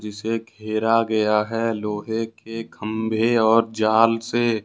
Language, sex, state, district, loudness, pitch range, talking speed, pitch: Hindi, male, Jharkhand, Ranchi, -21 LUFS, 110-115 Hz, 130 wpm, 110 Hz